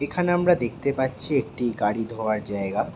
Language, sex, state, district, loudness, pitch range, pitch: Bengali, male, West Bengal, Jhargram, -25 LUFS, 110-145 Hz, 130 Hz